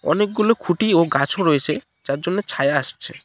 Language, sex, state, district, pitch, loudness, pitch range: Bengali, male, West Bengal, Cooch Behar, 175 Hz, -20 LUFS, 150-205 Hz